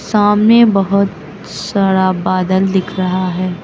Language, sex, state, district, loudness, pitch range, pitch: Hindi, female, Uttar Pradesh, Lucknow, -13 LUFS, 185-200 Hz, 190 Hz